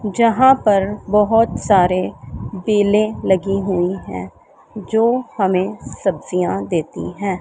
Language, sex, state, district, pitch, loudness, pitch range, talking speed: Hindi, female, Punjab, Pathankot, 195 Hz, -17 LUFS, 185-215 Hz, 105 wpm